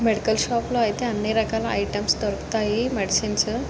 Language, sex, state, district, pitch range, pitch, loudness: Telugu, female, Andhra Pradesh, Guntur, 215-235 Hz, 225 Hz, -23 LUFS